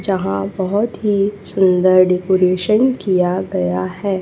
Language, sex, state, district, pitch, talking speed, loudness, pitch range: Hindi, female, Chhattisgarh, Raipur, 185 Hz, 115 wpm, -16 LUFS, 180-200 Hz